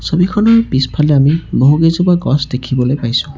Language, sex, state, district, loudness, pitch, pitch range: Assamese, male, Assam, Sonitpur, -12 LUFS, 145 Hz, 130-175 Hz